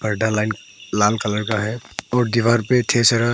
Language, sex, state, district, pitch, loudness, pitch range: Hindi, male, Arunachal Pradesh, Papum Pare, 110 Hz, -19 LUFS, 105-120 Hz